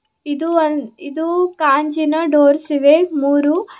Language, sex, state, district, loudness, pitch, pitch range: Kannada, female, Karnataka, Bidar, -16 LUFS, 300 Hz, 290-325 Hz